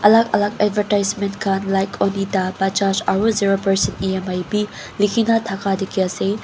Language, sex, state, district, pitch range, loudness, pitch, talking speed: Nagamese, female, Mizoram, Aizawl, 195-210 Hz, -19 LUFS, 195 Hz, 150 wpm